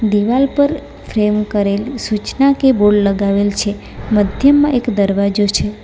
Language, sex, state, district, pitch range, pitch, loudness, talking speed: Gujarati, female, Gujarat, Valsad, 205-260 Hz, 210 Hz, -14 LUFS, 135 wpm